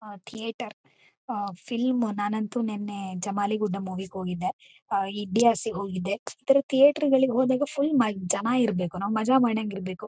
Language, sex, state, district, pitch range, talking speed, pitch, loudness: Kannada, female, Karnataka, Mysore, 200-245 Hz, 155 wpm, 215 Hz, -26 LUFS